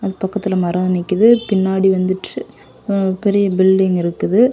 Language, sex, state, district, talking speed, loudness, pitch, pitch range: Tamil, female, Tamil Nadu, Kanyakumari, 135 wpm, -16 LUFS, 190 Hz, 185-200 Hz